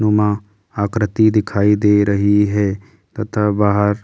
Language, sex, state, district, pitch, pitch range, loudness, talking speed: Hindi, male, Delhi, New Delhi, 105 Hz, 100-105 Hz, -16 LUFS, 120 wpm